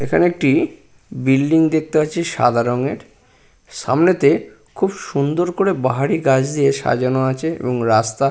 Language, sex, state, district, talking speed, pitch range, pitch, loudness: Bengali, male, West Bengal, Purulia, 135 wpm, 130-160 Hz, 140 Hz, -17 LUFS